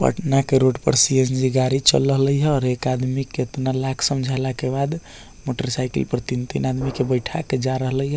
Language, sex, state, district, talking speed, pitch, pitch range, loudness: Bajjika, male, Bihar, Vaishali, 205 wpm, 130 Hz, 130-135 Hz, -21 LUFS